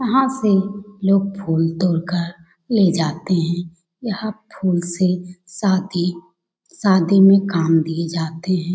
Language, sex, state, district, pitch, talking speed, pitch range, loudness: Hindi, female, Bihar, Jamui, 180 Hz, 115 wpm, 170-195 Hz, -19 LUFS